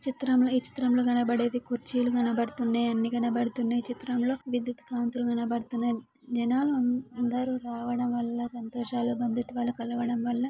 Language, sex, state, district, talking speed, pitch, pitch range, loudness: Telugu, female, Telangana, Karimnagar, 110 wpm, 240 Hz, 235-245 Hz, -29 LUFS